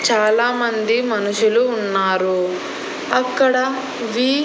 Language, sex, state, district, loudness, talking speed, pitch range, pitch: Telugu, female, Andhra Pradesh, Annamaya, -18 LUFS, 65 wpm, 210-250 Hz, 230 Hz